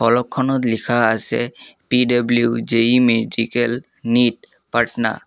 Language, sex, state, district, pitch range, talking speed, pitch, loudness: Assamese, male, Assam, Kamrup Metropolitan, 115-125 Hz, 90 wpm, 120 Hz, -17 LUFS